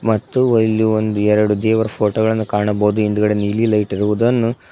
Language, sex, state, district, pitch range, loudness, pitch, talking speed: Kannada, male, Karnataka, Koppal, 105-110 Hz, -16 LUFS, 110 Hz, 140 wpm